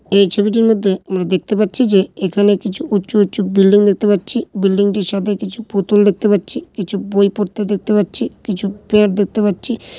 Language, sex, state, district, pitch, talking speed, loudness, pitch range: Bengali, male, West Bengal, Malda, 205 Hz, 175 wpm, -15 LUFS, 195-210 Hz